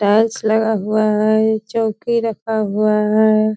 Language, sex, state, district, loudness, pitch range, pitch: Hindi, female, Bihar, Purnia, -17 LUFS, 215-220 Hz, 215 Hz